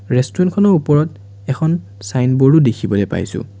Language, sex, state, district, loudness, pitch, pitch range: Assamese, male, Assam, Sonitpur, -15 LUFS, 130 Hz, 100-160 Hz